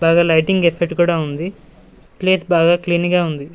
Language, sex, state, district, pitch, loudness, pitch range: Telugu, male, Telangana, Mahabubabad, 170 Hz, -16 LUFS, 165-175 Hz